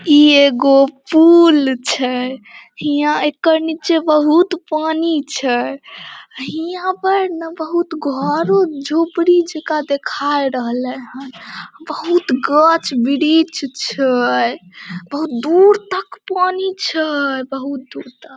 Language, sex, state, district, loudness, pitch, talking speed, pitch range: Maithili, female, Bihar, Samastipur, -15 LUFS, 305 Hz, 110 wpm, 270-330 Hz